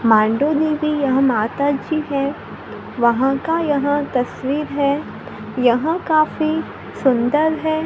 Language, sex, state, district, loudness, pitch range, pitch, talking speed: Hindi, female, Maharashtra, Gondia, -18 LUFS, 255-310 Hz, 285 Hz, 105 wpm